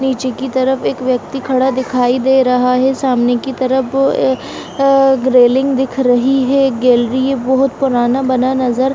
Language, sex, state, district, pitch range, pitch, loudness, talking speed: Hindi, female, Bihar, Bhagalpur, 255-265 Hz, 260 Hz, -13 LUFS, 165 wpm